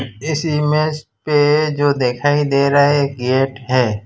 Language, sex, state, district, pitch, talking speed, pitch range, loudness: Hindi, male, Gujarat, Valsad, 145 Hz, 150 wpm, 130-150 Hz, -16 LUFS